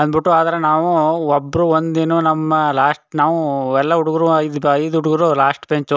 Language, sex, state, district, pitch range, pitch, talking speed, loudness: Kannada, male, Karnataka, Chamarajanagar, 145-165 Hz, 155 Hz, 170 wpm, -16 LUFS